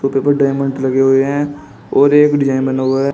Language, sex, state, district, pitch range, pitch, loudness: Hindi, male, Uttar Pradesh, Shamli, 135-140 Hz, 135 Hz, -14 LUFS